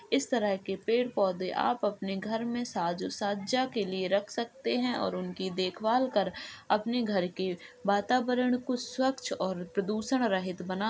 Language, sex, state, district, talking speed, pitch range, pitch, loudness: Hindi, female, Uttar Pradesh, Jalaun, 165 wpm, 190-245 Hz, 205 Hz, -31 LUFS